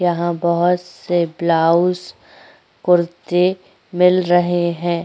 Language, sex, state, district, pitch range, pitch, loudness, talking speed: Hindi, female, Uttar Pradesh, Jyotiba Phule Nagar, 170-180 Hz, 175 Hz, -17 LUFS, 95 wpm